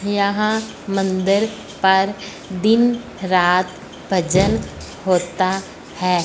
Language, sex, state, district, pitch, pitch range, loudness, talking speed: Hindi, female, Punjab, Fazilka, 195 Hz, 185-205 Hz, -19 LUFS, 75 wpm